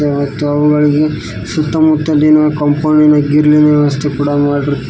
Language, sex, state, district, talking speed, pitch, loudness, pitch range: Kannada, male, Karnataka, Koppal, 110 wpm, 150 Hz, -11 LUFS, 145-150 Hz